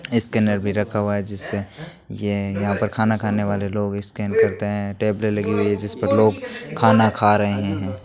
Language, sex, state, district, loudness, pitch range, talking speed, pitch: Hindi, male, Rajasthan, Bikaner, -20 LUFS, 100-110 Hz, 195 wpm, 105 Hz